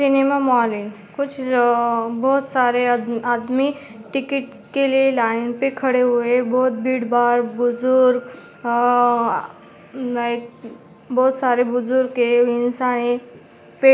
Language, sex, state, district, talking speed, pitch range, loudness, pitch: Hindi, female, Maharashtra, Aurangabad, 120 wpm, 240-260 Hz, -19 LUFS, 245 Hz